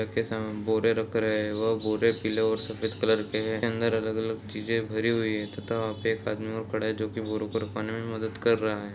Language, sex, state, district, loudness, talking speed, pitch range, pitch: Hindi, male, Bihar, Jahanabad, -29 LUFS, 235 wpm, 110-115 Hz, 110 Hz